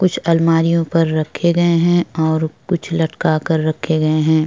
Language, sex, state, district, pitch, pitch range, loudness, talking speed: Hindi, female, Bihar, Vaishali, 165 Hz, 155-170 Hz, -16 LUFS, 175 wpm